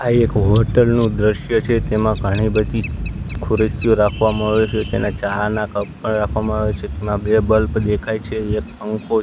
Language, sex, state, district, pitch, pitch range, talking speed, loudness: Gujarati, male, Gujarat, Gandhinagar, 110 Hz, 105-110 Hz, 180 wpm, -18 LUFS